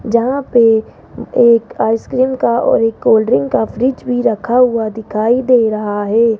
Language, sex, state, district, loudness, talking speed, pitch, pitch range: Hindi, female, Rajasthan, Jaipur, -14 LUFS, 170 wpm, 235 Hz, 220-245 Hz